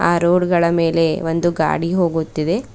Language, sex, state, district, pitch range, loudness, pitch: Kannada, female, Karnataka, Bidar, 165-175 Hz, -17 LUFS, 170 Hz